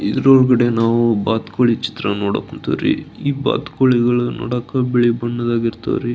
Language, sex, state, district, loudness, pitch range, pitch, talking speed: Kannada, male, Karnataka, Belgaum, -17 LUFS, 115-125 Hz, 120 Hz, 105 wpm